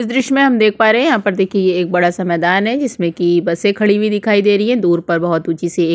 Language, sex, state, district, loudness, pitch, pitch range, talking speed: Hindi, female, Chhattisgarh, Korba, -14 LUFS, 195 Hz, 175-220 Hz, 310 wpm